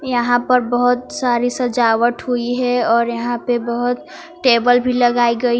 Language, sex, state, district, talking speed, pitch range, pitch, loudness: Hindi, female, Jharkhand, Palamu, 160 wpm, 240-250 Hz, 245 Hz, -17 LUFS